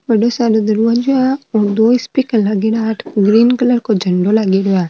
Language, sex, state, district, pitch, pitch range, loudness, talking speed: Marwari, female, Rajasthan, Nagaur, 220 Hz, 205-240 Hz, -14 LUFS, 120 wpm